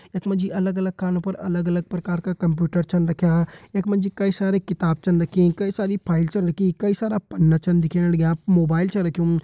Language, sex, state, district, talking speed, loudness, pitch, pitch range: Hindi, male, Uttarakhand, Tehri Garhwal, 230 wpm, -22 LUFS, 180 Hz, 170-195 Hz